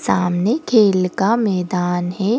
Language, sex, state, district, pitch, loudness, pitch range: Hindi, female, Goa, North and South Goa, 190 Hz, -17 LUFS, 180-225 Hz